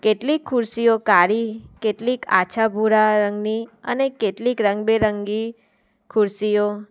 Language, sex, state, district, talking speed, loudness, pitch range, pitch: Gujarati, female, Gujarat, Valsad, 95 wpm, -20 LUFS, 210-230 Hz, 220 Hz